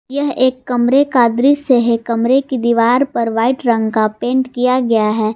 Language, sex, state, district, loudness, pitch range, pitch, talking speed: Hindi, female, Jharkhand, Garhwa, -14 LUFS, 230-260 Hz, 245 Hz, 200 wpm